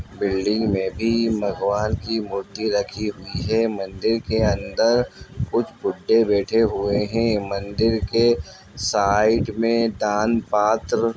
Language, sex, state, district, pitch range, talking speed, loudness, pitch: Hindi, male, Bihar, Muzaffarpur, 100-115 Hz, 130 wpm, -21 LUFS, 110 Hz